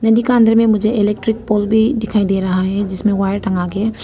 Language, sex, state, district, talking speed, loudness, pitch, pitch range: Hindi, female, Arunachal Pradesh, Papum Pare, 225 wpm, -15 LUFS, 210 Hz, 195-225 Hz